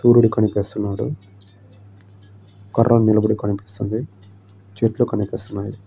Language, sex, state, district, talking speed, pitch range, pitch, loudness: Telugu, male, Andhra Pradesh, Srikakulam, 70 wpm, 100-110 Hz, 100 Hz, -20 LUFS